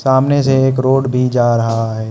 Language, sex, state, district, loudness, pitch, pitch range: Hindi, male, Arunachal Pradesh, Lower Dibang Valley, -14 LUFS, 130 Hz, 115-130 Hz